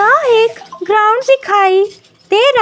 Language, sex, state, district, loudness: Hindi, female, Himachal Pradesh, Shimla, -11 LUFS